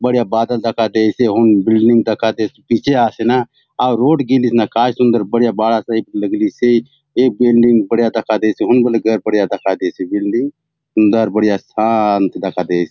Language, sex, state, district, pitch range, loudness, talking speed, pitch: Halbi, male, Chhattisgarh, Bastar, 110-120 Hz, -14 LUFS, 185 wpm, 115 Hz